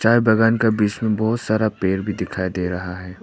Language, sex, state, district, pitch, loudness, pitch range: Hindi, male, Arunachal Pradesh, Papum Pare, 105 Hz, -20 LUFS, 95-110 Hz